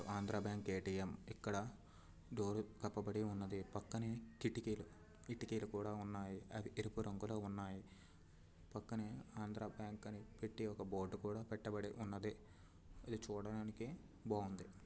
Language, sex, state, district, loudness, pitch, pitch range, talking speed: Telugu, male, Andhra Pradesh, Srikakulam, -47 LUFS, 105 Hz, 95-110 Hz, 115 wpm